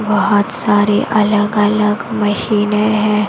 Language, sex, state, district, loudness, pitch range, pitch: Hindi, female, Maharashtra, Mumbai Suburban, -14 LUFS, 205-215 Hz, 210 Hz